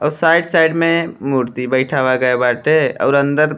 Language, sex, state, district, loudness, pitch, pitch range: Bhojpuri, male, Uttar Pradesh, Deoria, -15 LUFS, 140 Hz, 130-165 Hz